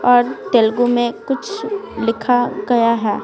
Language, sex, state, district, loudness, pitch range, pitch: Hindi, female, Bihar, Patna, -17 LUFS, 230-250 Hz, 245 Hz